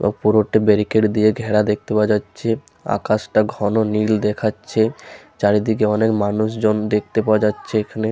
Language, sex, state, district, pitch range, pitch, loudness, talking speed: Bengali, male, West Bengal, Malda, 105-110 Hz, 110 Hz, -18 LUFS, 155 wpm